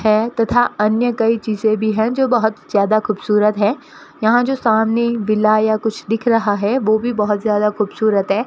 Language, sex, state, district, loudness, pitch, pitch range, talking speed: Hindi, female, Rajasthan, Bikaner, -16 LUFS, 220 Hz, 210-230 Hz, 190 wpm